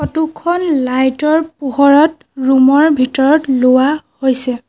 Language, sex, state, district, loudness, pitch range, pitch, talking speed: Assamese, female, Assam, Sonitpur, -13 LUFS, 260-310 Hz, 280 Hz, 130 wpm